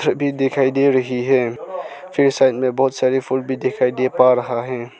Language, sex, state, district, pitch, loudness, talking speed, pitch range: Hindi, male, Arunachal Pradesh, Lower Dibang Valley, 130 Hz, -18 LUFS, 205 wpm, 125-135 Hz